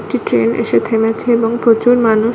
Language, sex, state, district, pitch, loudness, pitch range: Bengali, female, West Bengal, Kolkata, 230 Hz, -13 LUFS, 225-235 Hz